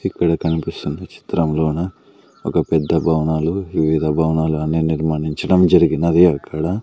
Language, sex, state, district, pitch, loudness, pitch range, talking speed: Telugu, male, Andhra Pradesh, Sri Satya Sai, 80 Hz, -18 LUFS, 80-85 Hz, 105 wpm